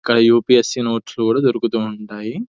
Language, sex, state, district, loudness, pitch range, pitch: Telugu, male, Telangana, Nalgonda, -17 LUFS, 115-120 Hz, 115 Hz